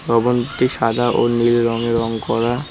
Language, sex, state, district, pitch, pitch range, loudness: Bengali, male, West Bengal, Cooch Behar, 120 Hz, 115-120 Hz, -18 LUFS